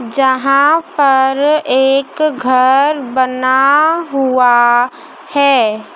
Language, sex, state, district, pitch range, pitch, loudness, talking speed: Hindi, female, Madhya Pradesh, Dhar, 255-290 Hz, 270 Hz, -12 LUFS, 70 wpm